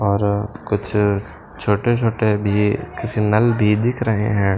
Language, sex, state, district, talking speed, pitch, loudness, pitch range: Hindi, male, Punjab, Pathankot, 130 wpm, 105 Hz, -19 LUFS, 100-110 Hz